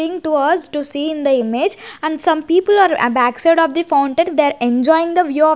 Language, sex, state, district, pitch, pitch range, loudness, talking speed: English, female, Chandigarh, Chandigarh, 315 Hz, 285-335 Hz, -15 LUFS, 235 wpm